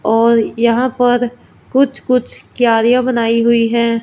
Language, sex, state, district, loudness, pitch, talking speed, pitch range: Hindi, female, Punjab, Fazilka, -14 LUFS, 235 Hz, 135 wpm, 230-250 Hz